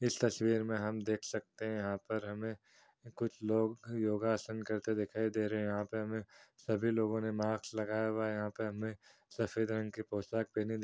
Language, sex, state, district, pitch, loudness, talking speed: Hindi, male, Chhattisgarh, Kabirdham, 110 Hz, -37 LUFS, 215 wpm